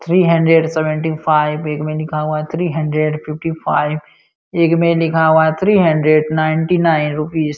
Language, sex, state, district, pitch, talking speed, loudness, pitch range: Hindi, male, Uttar Pradesh, Jalaun, 155 Hz, 190 wpm, -15 LUFS, 155-165 Hz